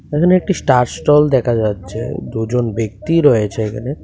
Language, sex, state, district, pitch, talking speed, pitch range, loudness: Bengali, male, Tripura, West Tripura, 125 Hz, 150 wpm, 110-150 Hz, -16 LUFS